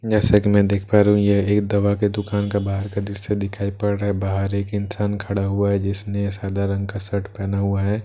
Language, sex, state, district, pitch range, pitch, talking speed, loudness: Hindi, male, Bihar, Katihar, 100-105 Hz, 100 Hz, 255 wpm, -21 LUFS